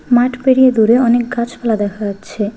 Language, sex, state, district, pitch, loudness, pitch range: Bengali, female, West Bengal, Alipurduar, 235 Hz, -14 LUFS, 215-245 Hz